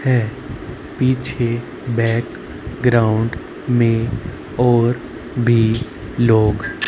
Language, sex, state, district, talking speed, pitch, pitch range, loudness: Hindi, male, Haryana, Rohtak, 70 wpm, 120 Hz, 115-125 Hz, -18 LUFS